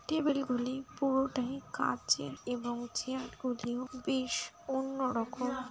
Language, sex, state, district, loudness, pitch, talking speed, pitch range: Bengali, female, West Bengal, Kolkata, -35 LUFS, 255 Hz, 115 wpm, 245-265 Hz